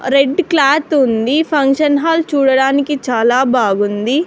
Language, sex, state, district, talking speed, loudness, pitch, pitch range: Telugu, female, Andhra Pradesh, Sri Satya Sai, 110 wpm, -13 LUFS, 275 Hz, 255-300 Hz